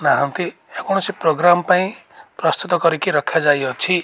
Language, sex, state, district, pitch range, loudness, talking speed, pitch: Odia, male, Odisha, Malkangiri, 160-185 Hz, -18 LUFS, 105 wpm, 175 Hz